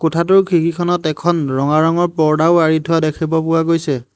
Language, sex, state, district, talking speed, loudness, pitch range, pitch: Assamese, male, Assam, Hailakandi, 160 wpm, -15 LUFS, 155-170 Hz, 165 Hz